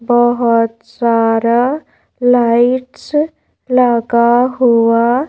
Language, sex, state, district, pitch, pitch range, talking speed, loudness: Hindi, female, Madhya Pradesh, Bhopal, 240 Hz, 230-250 Hz, 55 wpm, -13 LUFS